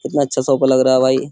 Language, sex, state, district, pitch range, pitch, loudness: Hindi, male, Uttar Pradesh, Jyotiba Phule Nagar, 130-135 Hz, 130 Hz, -15 LUFS